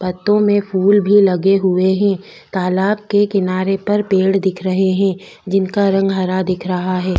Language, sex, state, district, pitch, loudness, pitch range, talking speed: Hindi, female, Chhattisgarh, Bastar, 190 Hz, -16 LUFS, 185-200 Hz, 175 wpm